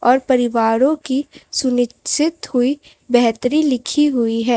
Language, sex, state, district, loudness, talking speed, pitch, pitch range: Hindi, female, Chhattisgarh, Raipur, -17 LUFS, 120 wpm, 255 Hz, 245-290 Hz